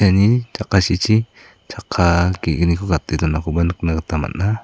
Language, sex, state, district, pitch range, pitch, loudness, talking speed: Garo, male, Meghalaya, South Garo Hills, 80-105 Hz, 90 Hz, -18 LUFS, 115 wpm